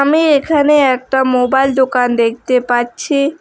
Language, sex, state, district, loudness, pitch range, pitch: Bengali, female, West Bengal, Alipurduar, -13 LUFS, 250-290 Hz, 265 Hz